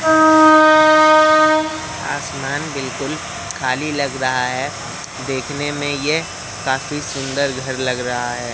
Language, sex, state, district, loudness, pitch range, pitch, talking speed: Hindi, male, Madhya Pradesh, Katni, -16 LUFS, 130-175 Hz, 145 Hz, 105 wpm